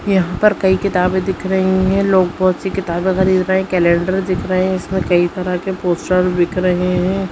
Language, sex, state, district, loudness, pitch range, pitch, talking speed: Hindi, female, Chhattisgarh, Sarguja, -16 LUFS, 180-190 Hz, 185 Hz, 215 wpm